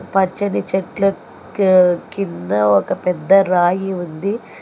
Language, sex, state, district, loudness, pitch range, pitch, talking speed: Telugu, female, Telangana, Hyderabad, -17 LUFS, 175-195 Hz, 185 Hz, 90 wpm